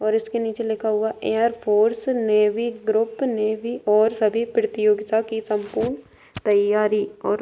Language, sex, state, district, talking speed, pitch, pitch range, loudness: Hindi, female, Uttar Pradesh, Ghazipur, 145 wpm, 220 Hz, 215-230 Hz, -22 LUFS